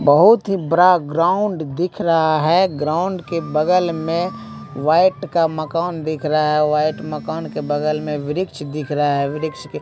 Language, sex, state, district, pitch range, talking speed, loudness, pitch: Hindi, male, Bihar, Katihar, 150-175 Hz, 175 wpm, -18 LUFS, 155 Hz